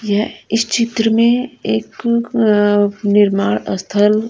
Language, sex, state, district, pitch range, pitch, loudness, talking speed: Hindi, female, Punjab, Kapurthala, 205-230 Hz, 210 Hz, -15 LUFS, 100 wpm